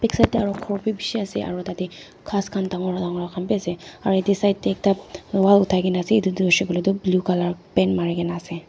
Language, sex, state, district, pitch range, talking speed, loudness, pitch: Nagamese, female, Nagaland, Dimapur, 175-200 Hz, 250 wpm, -22 LUFS, 185 Hz